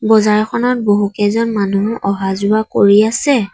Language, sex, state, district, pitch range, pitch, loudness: Assamese, female, Assam, Sonitpur, 200-225 Hz, 210 Hz, -14 LUFS